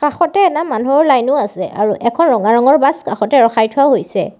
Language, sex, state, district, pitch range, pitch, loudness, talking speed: Assamese, female, Assam, Sonitpur, 220-295 Hz, 270 Hz, -13 LUFS, 205 wpm